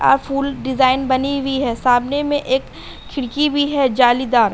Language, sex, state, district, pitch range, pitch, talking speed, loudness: Hindi, female, Uttar Pradesh, Hamirpur, 255-280 Hz, 265 Hz, 170 wpm, -17 LUFS